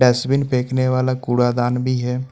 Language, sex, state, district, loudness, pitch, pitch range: Hindi, male, Jharkhand, Ranchi, -19 LUFS, 125 Hz, 125-130 Hz